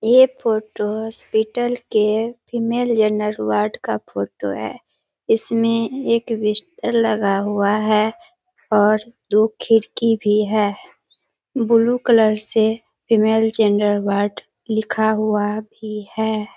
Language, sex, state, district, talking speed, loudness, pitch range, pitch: Hindi, female, Bihar, Begusarai, 115 wpm, -19 LUFS, 210-230 Hz, 220 Hz